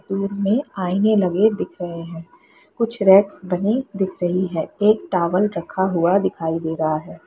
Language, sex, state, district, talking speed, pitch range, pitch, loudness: Hindi, female, Bihar, Lakhisarai, 175 wpm, 170-200 Hz, 190 Hz, -20 LUFS